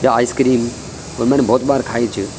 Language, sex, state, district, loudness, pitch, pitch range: Garhwali, male, Uttarakhand, Tehri Garhwal, -16 LUFS, 120 Hz, 115-130 Hz